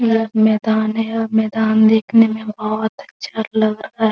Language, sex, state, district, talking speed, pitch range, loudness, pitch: Hindi, female, Bihar, Araria, 190 wpm, 220-225 Hz, -17 LUFS, 220 Hz